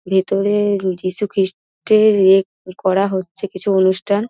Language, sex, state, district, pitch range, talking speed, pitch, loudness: Bengali, female, West Bengal, Dakshin Dinajpur, 190-205 Hz, 125 wpm, 195 Hz, -17 LUFS